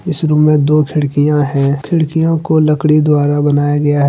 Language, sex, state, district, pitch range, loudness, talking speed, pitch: Hindi, male, Jharkhand, Deoghar, 145-155 Hz, -12 LUFS, 205 wpm, 150 Hz